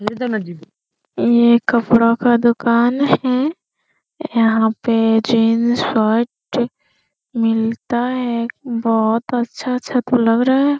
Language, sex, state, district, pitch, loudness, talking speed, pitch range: Hindi, female, Bihar, Jamui, 235 Hz, -16 LUFS, 105 wpm, 225-250 Hz